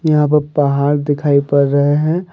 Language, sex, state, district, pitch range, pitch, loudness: Hindi, male, Jharkhand, Deoghar, 140-150 Hz, 145 Hz, -14 LUFS